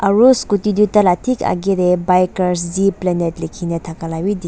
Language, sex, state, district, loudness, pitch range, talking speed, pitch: Nagamese, female, Nagaland, Dimapur, -16 LUFS, 175-205 Hz, 145 wpm, 180 Hz